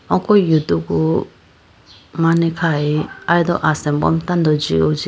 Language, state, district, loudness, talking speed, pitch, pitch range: Idu Mishmi, Arunachal Pradesh, Lower Dibang Valley, -17 LUFS, 120 wpm, 155 Hz, 145-170 Hz